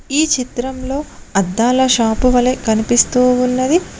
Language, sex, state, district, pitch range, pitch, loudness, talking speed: Telugu, female, Telangana, Mahabubabad, 240-260 Hz, 250 Hz, -15 LUFS, 105 wpm